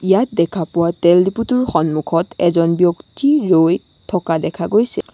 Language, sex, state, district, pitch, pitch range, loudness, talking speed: Assamese, female, Assam, Sonitpur, 175 Hz, 170-200 Hz, -16 LUFS, 150 wpm